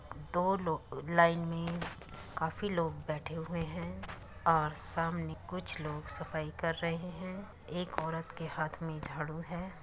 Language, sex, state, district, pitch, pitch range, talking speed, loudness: Hindi, female, Uttar Pradesh, Muzaffarnagar, 165 Hz, 155-170 Hz, 160 wpm, -36 LUFS